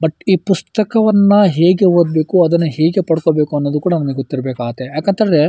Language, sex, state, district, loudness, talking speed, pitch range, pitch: Kannada, male, Karnataka, Shimoga, -14 LUFS, 165 wpm, 150-190 Hz, 165 Hz